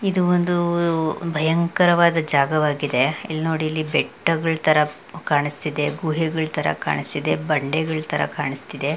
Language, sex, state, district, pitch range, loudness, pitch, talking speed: Kannada, female, Karnataka, Mysore, 150-170 Hz, -21 LUFS, 155 Hz, 135 wpm